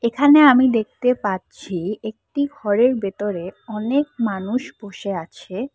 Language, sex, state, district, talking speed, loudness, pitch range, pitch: Bengali, female, Assam, Hailakandi, 115 wpm, -20 LUFS, 200-255 Hz, 220 Hz